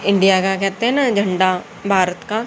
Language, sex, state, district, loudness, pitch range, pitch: Hindi, female, Haryana, Rohtak, -17 LUFS, 190-210 Hz, 195 Hz